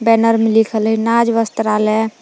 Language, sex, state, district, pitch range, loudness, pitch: Magahi, female, Jharkhand, Palamu, 220-230 Hz, -14 LUFS, 225 Hz